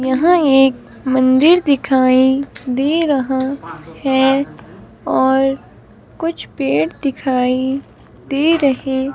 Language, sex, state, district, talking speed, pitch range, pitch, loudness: Hindi, female, Himachal Pradesh, Shimla, 85 wpm, 260-280 Hz, 270 Hz, -15 LUFS